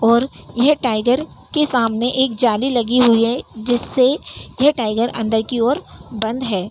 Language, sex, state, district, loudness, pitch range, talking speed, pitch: Hindi, female, Uttar Pradesh, Hamirpur, -18 LUFS, 230-260 Hz, 160 wpm, 240 Hz